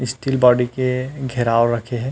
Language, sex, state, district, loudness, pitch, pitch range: Chhattisgarhi, male, Chhattisgarh, Rajnandgaon, -18 LUFS, 125 Hz, 120-130 Hz